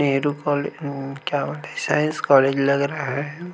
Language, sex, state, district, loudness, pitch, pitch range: Chhattisgarhi, male, Chhattisgarh, Rajnandgaon, -22 LUFS, 145 Hz, 140-150 Hz